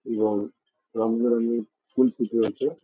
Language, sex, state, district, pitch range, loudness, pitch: Bengali, male, West Bengal, Jalpaiguri, 110-120 Hz, -25 LUFS, 115 Hz